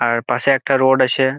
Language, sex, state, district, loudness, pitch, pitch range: Bengali, male, West Bengal, Jalpaiguri, -16 LUFS, 130 Hz, 120-135 Hz